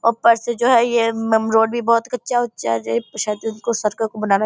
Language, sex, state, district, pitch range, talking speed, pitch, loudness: Hindi, female, Bihar, Purnia, 215-235 Hz, 160 wpm, 225 Hz, -19 LUFS